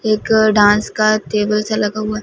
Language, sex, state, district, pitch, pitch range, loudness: Hindi, female, Punjab, Fazilka, 215 Hz, 210-215 Hz, -15 LUFS